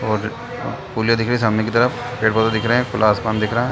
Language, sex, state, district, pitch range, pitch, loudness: Hindi, male, Chhattisgarh, Bastar, 110-120 Hz, 110 Hz, -19 LUFS